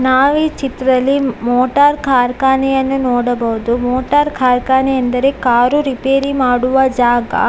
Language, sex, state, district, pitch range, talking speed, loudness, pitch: Kannada, female, Karnataka, Dakshina Kannada, 245-270 Hz, 95 wpm, -14 LUFS, 260 Hz